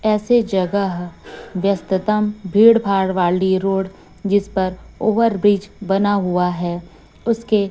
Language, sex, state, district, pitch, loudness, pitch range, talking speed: Hindi, female, Chhattisgarh, Raipur, 195 Hz, -18 LUFS, 185-210 Hz, 115 wpm